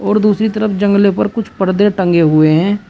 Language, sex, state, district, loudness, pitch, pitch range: Hindi, male, Uttar Pradesh, Shamli, -13 LUFS, 200 Hz, 185-210 Hz